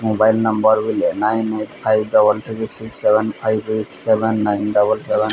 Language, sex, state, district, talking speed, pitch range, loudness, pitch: Odia, male, Odisha, Sambalpur, 190 wpm, 105-110 Hz, -17 LUFS, 110 Hz